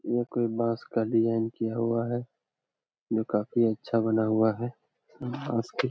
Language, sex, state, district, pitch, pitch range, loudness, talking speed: Hindi, male, Jharkhand, Jamtara, 115 Hz, 110-120 Hz, -28 LUFS, 160 wpm